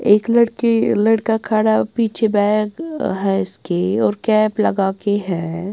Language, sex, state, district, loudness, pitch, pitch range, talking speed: Hindi, female, Bihar, West Champaran, -17 LUFS, 215 Hz, 195-225 Hz, 135 wpm